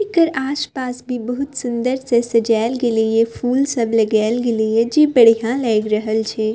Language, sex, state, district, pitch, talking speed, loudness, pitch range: Maithili, female, Bihar, Purnia, 235 Hz, 175 wpm, -17 LUFS, 225-260 Hz